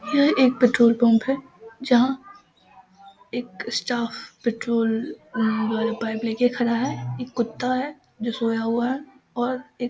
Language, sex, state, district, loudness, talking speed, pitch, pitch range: Maithili, female, Bihar, Samastipur, -23 LUFS, 140 wpm, 240 Hz, 225-260 Hz